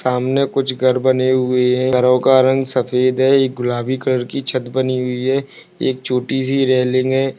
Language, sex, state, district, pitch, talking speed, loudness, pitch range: Hindi, male, Uttarakhand, Tehri Garhwal, 130 Hz, 195 wpm, -16 LUFS, 125-130 Hz